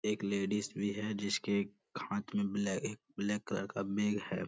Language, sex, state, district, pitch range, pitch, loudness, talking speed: Hindi, male, Bihar, Purnia, 100-105 Hz, 100 Hz, -36 LUFS, 200 wpm